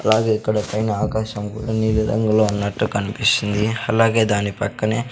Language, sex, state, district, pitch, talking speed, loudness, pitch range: Telugu, male, Andhra Pradesh, Sri Satya Sai, 110 Hz, 150 wpm, -20 LUFS, 105-110 Hz